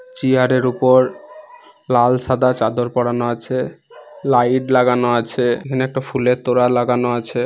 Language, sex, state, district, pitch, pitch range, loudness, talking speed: Bengali, male, West Bengal, Purulia, 125 Hz, 120-130 Hz, -17 LUFS, 135 wpm